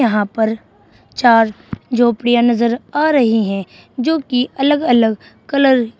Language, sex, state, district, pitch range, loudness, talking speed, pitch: Hindi, female, Uttar Pradesh, Shamli, 225-270 Hz, -15 LUFS, 140 wpm, 240 Hz